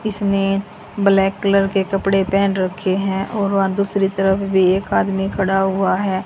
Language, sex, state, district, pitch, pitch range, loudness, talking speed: Hindi, female, Haryana, Jhajjar, 195 Hz, 190-200 Hz, -18 LUFS, 170 wpm